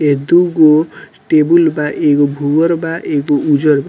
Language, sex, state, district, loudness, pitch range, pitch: Bhojpuri, male, Bihar, Muzaffarpur, -12 LUFS, 145-165 Hz, 150 Hz